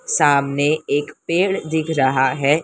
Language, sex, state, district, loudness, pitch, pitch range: Hindi, female, Maharashtra, Mumbai Suburban, -18 LUFS, 145 Hz, 140-160 Hz